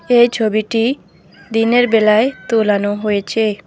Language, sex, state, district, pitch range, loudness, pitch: Bengali, female, West Bengal, Alipurduar, 210-235 Hz, -15 LUFS, 225 Hz